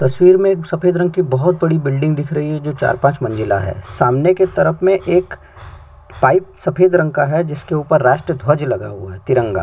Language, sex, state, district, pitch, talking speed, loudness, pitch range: Hindi, male, Chhattisgarh, Sukma, 150 Hz, 220 wpm, -15 LUFS, 120-180 Hz